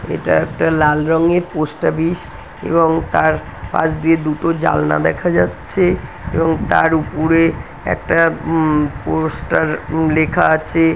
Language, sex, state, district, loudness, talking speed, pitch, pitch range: Bengali, female, West Bengal, North 24 Parganas, -16 LUFS, 130 wpm, 160 Hz, 150-165 Hz